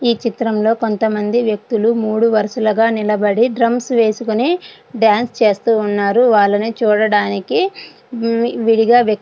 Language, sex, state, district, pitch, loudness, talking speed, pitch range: Telugu, female, Andhra Pradesh, Srikakulam, 225 Hz, -15 LUFS, 115 wpm, 215-235 Hz